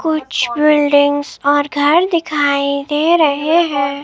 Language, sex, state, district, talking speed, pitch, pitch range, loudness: Hindi, male, Himachal Pradesh, Shimla, 120 wpm, 290 Hz, 285-310 Hz, -14 LUFS